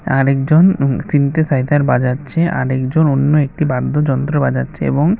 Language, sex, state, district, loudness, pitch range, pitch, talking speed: Bengali, male, Tripura, West Tripura, -15 LUFS, 135-155 Hz, 140 Hz, 115 wpm